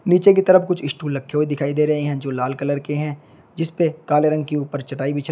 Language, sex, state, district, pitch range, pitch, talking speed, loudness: Hindi, male, Uttar Pradesh, Shamli, 145-155 Hz, 150 Hz, 260 wpm, -20 LUFS